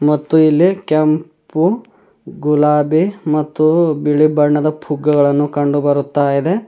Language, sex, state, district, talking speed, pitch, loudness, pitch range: Kannada, male, Karnataka, Bidar, 90 wpm, 150 Hz, -14 LUFS, 150-160 Hz